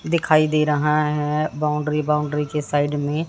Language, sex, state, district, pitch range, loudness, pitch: Hindi, female, Haryana, Jhajjar, 150-155 Hz, -20 LUFS, 150 Hz